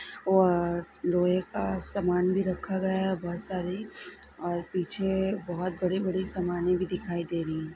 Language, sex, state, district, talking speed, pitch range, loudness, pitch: Hindi, female, Bihar, East Champaran, 160 wpm, 175-190 Hz, -29 LUFS, 180 Hz